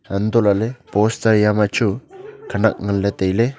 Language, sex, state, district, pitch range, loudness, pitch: Wancho, male, Arunachal Pradesh, Longding, 100-115 Hz, -18 LUFS, 110 Hz